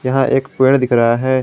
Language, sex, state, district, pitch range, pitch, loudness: Hindi, male, Jharkhand, Garhwa, 130-135 Hz, 130 Hz, -14 LUFS